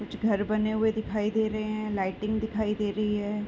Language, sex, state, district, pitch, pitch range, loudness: Hindi, female, Uttar Pradesh, Varanasi, 215 Hz, 210-215 Hz, -28 LUFS